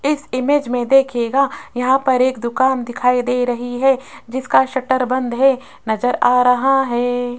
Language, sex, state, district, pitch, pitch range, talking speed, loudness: Hindi, female, Rajasthan, Jaipur, 255 Hz, 245-265 Hz, 160 wpm, -17 LUFS